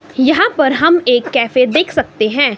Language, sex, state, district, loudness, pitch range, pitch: Hindi, female, Himachal Pradesh, Shimla, -13 LUFS, 260-335 Hz, 300 Hz